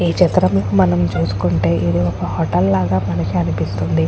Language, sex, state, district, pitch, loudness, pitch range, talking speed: Telugu, female, Andhra Pradesh, Chittoor, 90 Hz, -17 LUFS, 85-95 Hz, 145 wpm